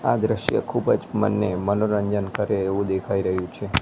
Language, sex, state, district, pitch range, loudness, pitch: Gujarati, male, Gujarat, Gandhinagar, 95-105 Hz, -23 LUFS, 100 Hz